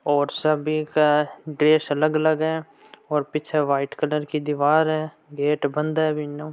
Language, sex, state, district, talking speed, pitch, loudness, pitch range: Hindi, male, Rajasthan, Churu, 165 wpm, 150 Hz, -22 LUFS, 150-155 Hz